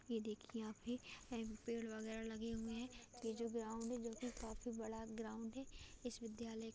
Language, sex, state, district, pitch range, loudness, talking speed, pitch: Hindi, female, Chhattisgarh, Sarguja, 225-235 Hz, -49 LUFS, 180 wpm, 230 Hz